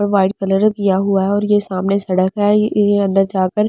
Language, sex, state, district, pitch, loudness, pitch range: Hindi, female, Delhi, New Delhi, 200 Hz, -15 LUFS, 190-205 Hz